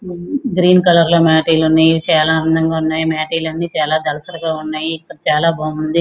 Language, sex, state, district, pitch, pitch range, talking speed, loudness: Telugu, male, Andhra Pradesh, Srikakulam, 160 Hz, 155-170 Hz, 170 wpm, -15 LUFS